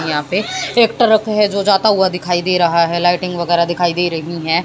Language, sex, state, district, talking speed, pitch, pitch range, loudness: Hindi, female, Haryana, Jhajjar, 230 wpm, 175 Hz, 170-200 Hz, -15 LUFS